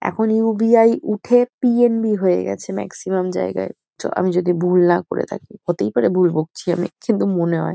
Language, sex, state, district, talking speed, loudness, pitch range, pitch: Bengali, female, West Bengal, Kolkata, 210 wpm, -18 LUFS, 175-225 Hz, 185 Hz